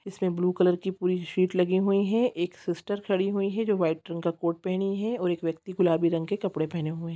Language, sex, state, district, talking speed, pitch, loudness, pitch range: Hindi, female, Chhattisgarh, Sukma, 260 wpm, 180 Hz, -27 LUFS, 170-195 Hz